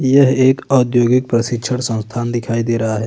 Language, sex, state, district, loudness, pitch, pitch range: Hindi, male, Uttar Pradesh, Budaun, -16 LUFS, 120 Hz, 115-130 Hz